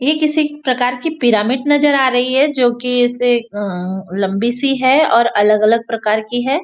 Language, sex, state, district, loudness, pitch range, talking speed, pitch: Hindi, female, Maharashtra, Nagpur, -15 LUFS, 220-275 Hz, 190 wpm, 245 Hz